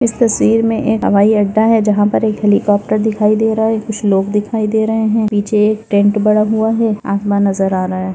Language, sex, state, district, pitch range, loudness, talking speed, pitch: Hindi, female, Bihar, Kishanganj, 205-220 Hz, -14 LUFS, 230 wpm, 215 Hz